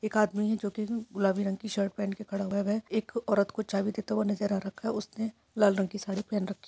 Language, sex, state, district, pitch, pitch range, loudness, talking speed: Hindi, female, Maharashtra, Aurangabad, 205 Hz, 200-215 Hz, -31 LUFS, 250 wpm